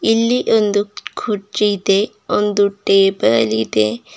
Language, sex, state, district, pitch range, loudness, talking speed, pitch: Kannada, female, Karnataka, Bidar, 195-210 Hz, -16 LUFS, 100 wpm, 200 Hz